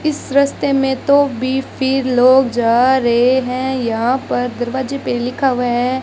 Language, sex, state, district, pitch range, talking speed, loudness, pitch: Hindi, female, Rajasthan, Bikaner, 245-270 Hz, 170 wpm, -15 LUFS, 260 Hz